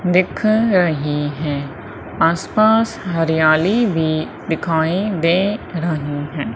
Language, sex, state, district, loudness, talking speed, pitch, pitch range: Hindi, female, Madhya Pradesh, Umaria, -18 LUFS, 100 wpm, 165 Hz, 150-190 Hz